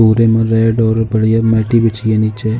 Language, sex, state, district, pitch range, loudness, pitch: Hindi, male, Uttar Pradesh, Jalaun, 110-115 Hz, -13 LUFS, 110 Hz